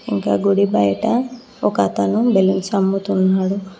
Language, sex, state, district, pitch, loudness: Telugu, female, Telangana, Mahabubabad, 190 Hz, -17 LUFS